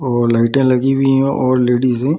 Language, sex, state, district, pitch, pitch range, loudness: Hindi, male, Bihar, Samastipur, 130 Hz, 125-135 Hz, -14 LUFS